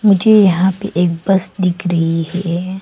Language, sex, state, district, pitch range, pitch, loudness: Hindi, female, Arunachal Pradesh, Longding, 175-195 Hz, 185 Hz, -14 LUFS